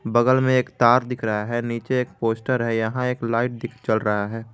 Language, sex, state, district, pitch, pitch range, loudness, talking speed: Hindi, male, Jharkhand, Garhwa, 120 Hz, 115-125 Hz, -22 LUFS, 225 wpm